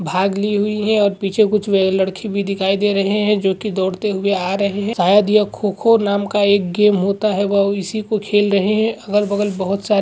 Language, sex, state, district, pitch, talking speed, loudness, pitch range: Hindi, male, Andhra Pradesh, Krishna, 200 Hz, 235 wpm, -17 LUFS, 195-210 Hz